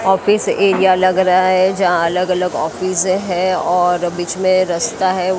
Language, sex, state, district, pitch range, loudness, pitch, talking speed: Hindi, female, Maharashtra, Mumbai Suburban, 180-190 Hz, -15 LUFS, 185 Hz, 165 wpm